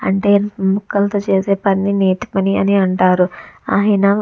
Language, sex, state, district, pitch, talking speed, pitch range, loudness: Telugu, female, Andhra Pradesh, Visakhapatnam, 195 Hz, 100 wpm, 190-200 Hz, -15 LUFS